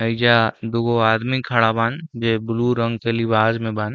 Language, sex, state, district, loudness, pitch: Bhojpuri, male, Uttar Pradesh, Deoria, -19 LUFS, 115 Hz